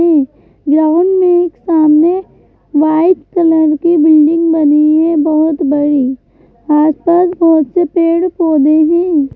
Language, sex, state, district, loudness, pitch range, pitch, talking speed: Hindi, female, Madhya Pradesh, Bhopal, -11 LUFS, 305-340 Hz, 315 Hz, 120 wpm